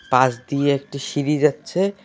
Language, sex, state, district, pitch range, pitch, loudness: Bengali, male, West Bengal, Alipurduar, 140-150 Hz, 145 Hz, -21 LUFS